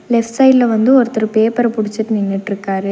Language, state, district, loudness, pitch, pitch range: Tamil, Tamil Nadu, Nilgiris, -14 LUFS, 220 Hz, 205-240 Hz